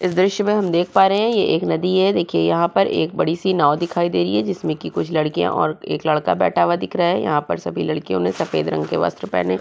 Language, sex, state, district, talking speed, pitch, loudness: Hindi, female, Uttarakhand, Tehri Garhwal, 280 wpm, 170 Hz, -19 LUFS